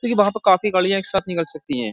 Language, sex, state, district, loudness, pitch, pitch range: Hindi, male, Uttar Pradesh, Jyotiba Phule Nagar, -19 LUFS, 190 Hz, 170-205 Hz